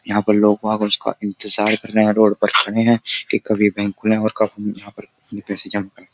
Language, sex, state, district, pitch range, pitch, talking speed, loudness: Hindi, male, Uttar Pradesh, Jyotiba Phule Nagar, 105-110 Hz, 105 Hz, 255 wpm, -17 LUFS